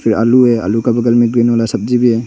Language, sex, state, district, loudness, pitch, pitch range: Hindi, male, Arunachal Pradesh, Longding, -12 LUFS, 120 Hz, 115-120 Hz